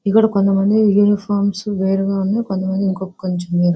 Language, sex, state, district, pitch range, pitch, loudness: Telugu, female, Andhra Pradesh, Visakhapatnam, 190-205 Hz, 195 Hz, -17 LUFS